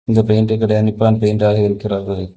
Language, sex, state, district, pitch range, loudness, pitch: Tamil, male, Tamil Nadu, Kanyakumari, 100-110 Hz, -15 LUFS, 105 Hz